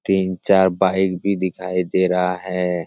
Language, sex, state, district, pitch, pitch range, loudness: Hindi, male, Bihar, Jamui, 95 Hz, 90-95 Hz, -19 LUFS